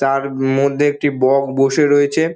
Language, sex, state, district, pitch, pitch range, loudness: Bengali, male, West Bengal, Dakshin Dinajpur, 140 Hz, 135-145 Hz, -15 LUFS